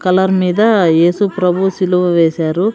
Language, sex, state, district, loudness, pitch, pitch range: Telugu, female, Andhra Pradesh, Sri Satya Sai, -13 LUFS, 185 Hz, 175-190 Hz